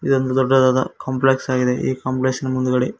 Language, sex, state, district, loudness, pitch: Kannada, male, Karnataka, Koppal, -19 LUFS, 130 Hz